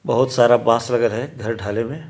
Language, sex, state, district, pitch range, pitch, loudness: Chhattisgarhi, male, Chhattisgarh, Sarguja, 115-125 Hz, 120 Hz, -19 LUFS